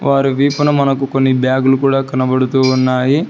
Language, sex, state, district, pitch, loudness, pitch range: Telugu, male, Telangana, Hyderabad, 135 Hz, -14 LUFS, 130-140 Hz